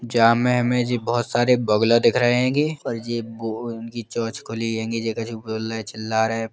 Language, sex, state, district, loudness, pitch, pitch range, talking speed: Bundeli, male, Uttar Pradesh, Jalaun, -22 LUFS, 115 Hz, 115-120 Hz, 210 wpm